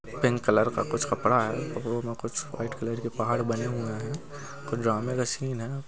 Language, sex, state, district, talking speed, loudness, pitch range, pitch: Hindi, male, Uttar Pradesh, Muzaffarnagar, 215 wpm, -29 LUFS, 115-130 Hz, 120 Hz